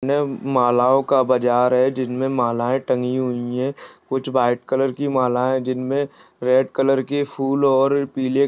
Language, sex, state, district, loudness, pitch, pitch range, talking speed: Hindi, male, Maharashtra, Solapur, -20 LUFS, 130 Hz, 125-135 Hz, 170 wpm